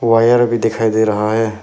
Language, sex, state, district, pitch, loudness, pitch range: Hindi, male, Arunachal Pradesh, Papum Pare, 115 Hz, -14 LUFS, 110-115 Hz